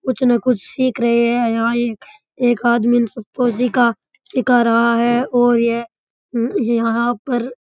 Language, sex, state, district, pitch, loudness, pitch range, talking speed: Rajasthani, male, Rajasthan, Churu, 240 Hz, -17 LUFS, 235-245 Hz, 150 wpm